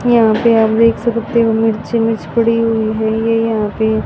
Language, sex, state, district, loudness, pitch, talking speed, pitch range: Hindi, female, Haryana, Rohtak, -14 LUFS, 225 Hz, 235 wpm, 220-230 Hz